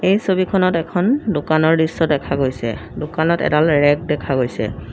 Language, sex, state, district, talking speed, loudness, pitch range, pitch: Assamese, female, Assam, Sonitpur, 145 wpm, -18 LUFS, 145-180 Hz, 160 Hz